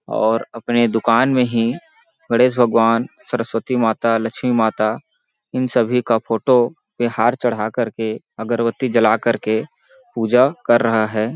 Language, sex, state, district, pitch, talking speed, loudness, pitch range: Hindi, male, Chhattisgarh, Balrampur, 115 Hz, 145 wpm, -18 LUFS, 115-125 Hz